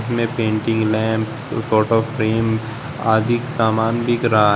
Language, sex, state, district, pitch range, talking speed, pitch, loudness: Hindi, male, Uttar Pradesh, Shamli, 110-120 Hz, 120 wpm, 115 Hz, -19 LUFS